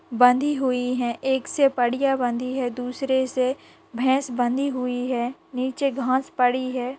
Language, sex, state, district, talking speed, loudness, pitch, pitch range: Hindi, female, Chhattisgarh, Raigarh, 155 wpm, -23 LUFS, 255 Hz, 250-265 Hz